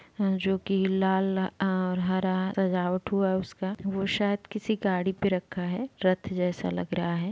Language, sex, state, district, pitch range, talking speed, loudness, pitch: Hindi, female, Jharkhand, Sahebganj, 185-195 Hz, 170 wpm, -28 LUFS, 190 Hz